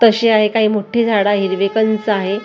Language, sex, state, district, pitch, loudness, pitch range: Marathi, female, Maharashtra, Gondia, 215 Hz, -15 LUFS, 205-220 Hz